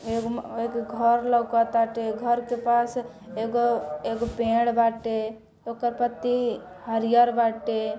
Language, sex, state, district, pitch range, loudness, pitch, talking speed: Bhojpuri, female, Bihar, Saran, 225-240 Hz, -25 LUFS, 235 Hz, 130 wpm